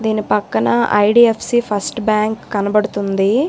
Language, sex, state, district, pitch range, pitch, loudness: Telugu, female, Telangana, Hyderabad, 200-225 Hz, 210 Hz, -16 LUFS